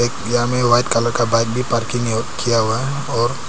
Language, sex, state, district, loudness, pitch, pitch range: Hindi, male, Arunachal Pradesh, Papum Pare, -18 LUFS, 120 Hz, 115-120 Hz